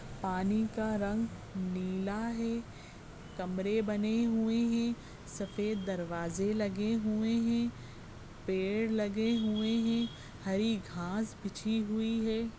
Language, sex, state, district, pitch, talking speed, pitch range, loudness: Hindi, female, Goa, North and South Goa, 215 Hz, 110 wpm, 195-225 Hz, -34 LUFS